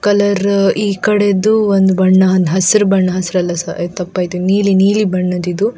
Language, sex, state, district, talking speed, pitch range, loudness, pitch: Kannada, female, Karnataka, Dakshina Kannada, 145 wpm, 185-205 Hz, -13 LUFS, 190 Hz